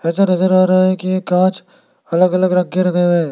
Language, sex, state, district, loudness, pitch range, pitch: Hindi, male, Rajasthan, Jaipur, -15 LUFS, 180-185 Hz, 185 Hz